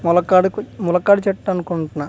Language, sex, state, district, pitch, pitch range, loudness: Telugu, male, Andhra Pradesh, Manyam, 180 Hz, 170-195 Hz, -17 LUFS